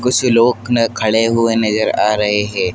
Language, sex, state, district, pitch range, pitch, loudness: Hindi, male, Madhya Pradesh, Dhar, 105-115 Hz, 115 Hz, -14 LUFS